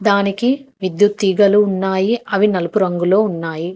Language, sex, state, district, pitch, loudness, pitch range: Telugu, female, Telangana, Hyderabad, 200 Hz, -16 LUFS, 185-210 Hz